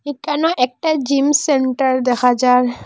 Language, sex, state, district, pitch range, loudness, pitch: Bengali, female, Assam, Hailakandi, 250-295 Hz, -16 LUFS, 270 Hz